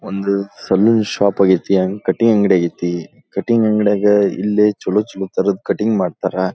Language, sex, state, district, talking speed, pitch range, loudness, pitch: Kannada, male, Karnataka, Dharwad, 130 wpm, 95-105 Hz, -16 LUFS, 100 Hz